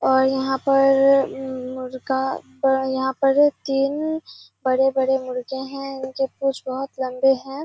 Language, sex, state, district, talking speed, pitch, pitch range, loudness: Hindi, female, Bihar, Kishanganj, 125 wpm, 265 Hz, 265-275 Hz, -21 LUFS